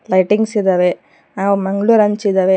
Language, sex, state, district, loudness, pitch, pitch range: Kannada, female, Karnataka, Koppal, -15 LUFS, 200 Hz, 190-210 Hz